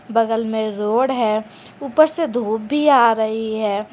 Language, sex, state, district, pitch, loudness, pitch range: Hindi, female, Jharkhand, Garhwa, 225 Hz, -18 LUFS, 220-260 Hz